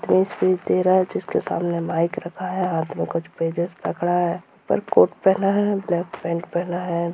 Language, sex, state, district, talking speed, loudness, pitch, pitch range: Hindi, female, Bihar, Purnia, 200 wpm, -22 LUFS, 175 Hz, 170-185 Hz